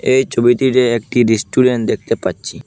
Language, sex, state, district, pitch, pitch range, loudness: Bengali, male, Assam, Hailakandi, 120 Hz, 115-130 Hz, -15 LUFS